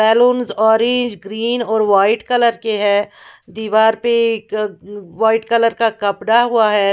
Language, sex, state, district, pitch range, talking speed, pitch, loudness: Hindi, female, Odisha, Khordha, 210-230 Hz, 155 wpm, 220 Hz, -15 LUFS